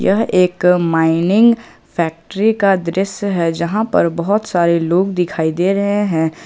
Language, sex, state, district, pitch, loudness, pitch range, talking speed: Hindi, male, Jharkhand, Ranchi, 180 Hz, -15 LUFS, 170-200 Hz, 150 wpm